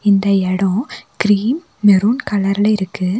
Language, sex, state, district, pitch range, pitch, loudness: Tamil, female, Tamil Nadu, Nilgiris, 195-215 Hz, 205 Hz, -16 LUFS